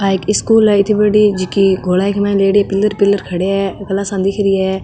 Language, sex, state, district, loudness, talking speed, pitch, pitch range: Marwari, female, Rajasthan, Nagaur, -14 LUFS, 225 wpm, 195 Hz, 190-205 Hz